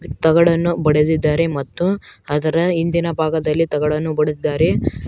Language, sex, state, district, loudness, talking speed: Kannada, male, Karnataka, Koppal, -18 LUFS, 95 wpm